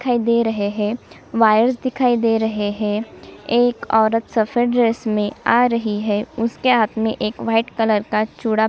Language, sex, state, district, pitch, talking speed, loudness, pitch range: Hindi, female, Chhattisgarh, Sukma, 225 Hz, 180 wpm, -19 LUFS, 215-235 Hz